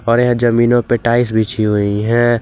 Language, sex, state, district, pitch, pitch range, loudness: Hindi, male, Jharkhand, Garhwa, 120 Hz, 110-120 Hz, -14 LUFS